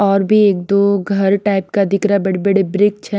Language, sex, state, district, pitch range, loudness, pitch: Hindi, female, Bihar, Patna, 195-200 Hz, -15 LUFS, 200 Hz